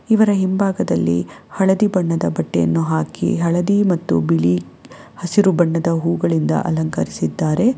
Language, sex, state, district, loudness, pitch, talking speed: Kannada, female, Karnataka, Bangalore, -18 LUFS, 165 Hz, 100 wpm